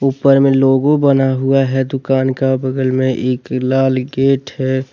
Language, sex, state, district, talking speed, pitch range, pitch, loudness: Hindi, male, Jharkhand, Deoghar, 170 wpm, 130-135 Hz, 135 Hz, -14 LUFS